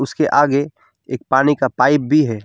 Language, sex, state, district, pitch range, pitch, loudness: Hindi, male, West Bengal, Alipurduar, 130-145 Hz, 140 Hz, -16 LUFS